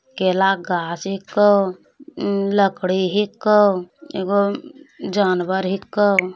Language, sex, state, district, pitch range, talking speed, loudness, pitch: Hindi, female, Bihar, Begusarai, 185-205 Hz, 95 wpm, -19 LUFS, 195 Hz